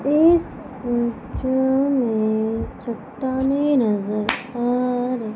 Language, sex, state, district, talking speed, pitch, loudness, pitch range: Hindi, female, Madhya Pradesh, Umaria, 80 wpm, 250 Hz, -21 LUFS, 230-265 Hz